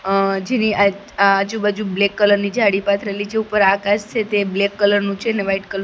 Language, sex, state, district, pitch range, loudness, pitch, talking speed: Gujarati, female, Gujarat, Gandhinagar, 195-210 Hz, -18 LUFS, 200 Hz, 215 wpm